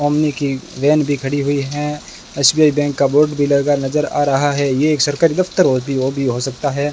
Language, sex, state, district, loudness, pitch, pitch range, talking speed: Hindi, male, Rajasthan, Bikaner, -16 LUFS, 145 Hz, 140-150 Hz, 215 wpm